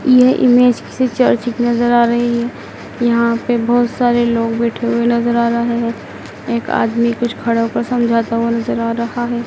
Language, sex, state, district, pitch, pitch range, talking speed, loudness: Hindi, female, Madhya Pradesh, Dhar, 235 Hz, 235-240 Hz, 205 wpm, -15 LUFS